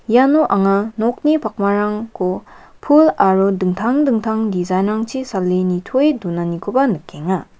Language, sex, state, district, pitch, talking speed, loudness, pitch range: Garo, female, Meghalaya, West Garo Hills, 210 Hz, 110 wpm, -17 LUFS, 190-255 Hz